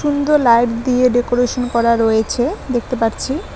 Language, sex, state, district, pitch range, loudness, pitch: Bengali, female, West Bengal, Alipurduar, 235-255 Hz, -16 LUFS, 245 Hz